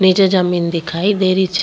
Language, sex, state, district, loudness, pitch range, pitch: Rajasthani, female, Rajasthan, Churu, -15 LUFS, 175-190 Hz, 185 Hz